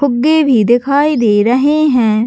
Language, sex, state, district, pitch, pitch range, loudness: Hindi, female, Chhattisgarh, Bastar, 255 Hz, 230-290 Hz, -11 LUFS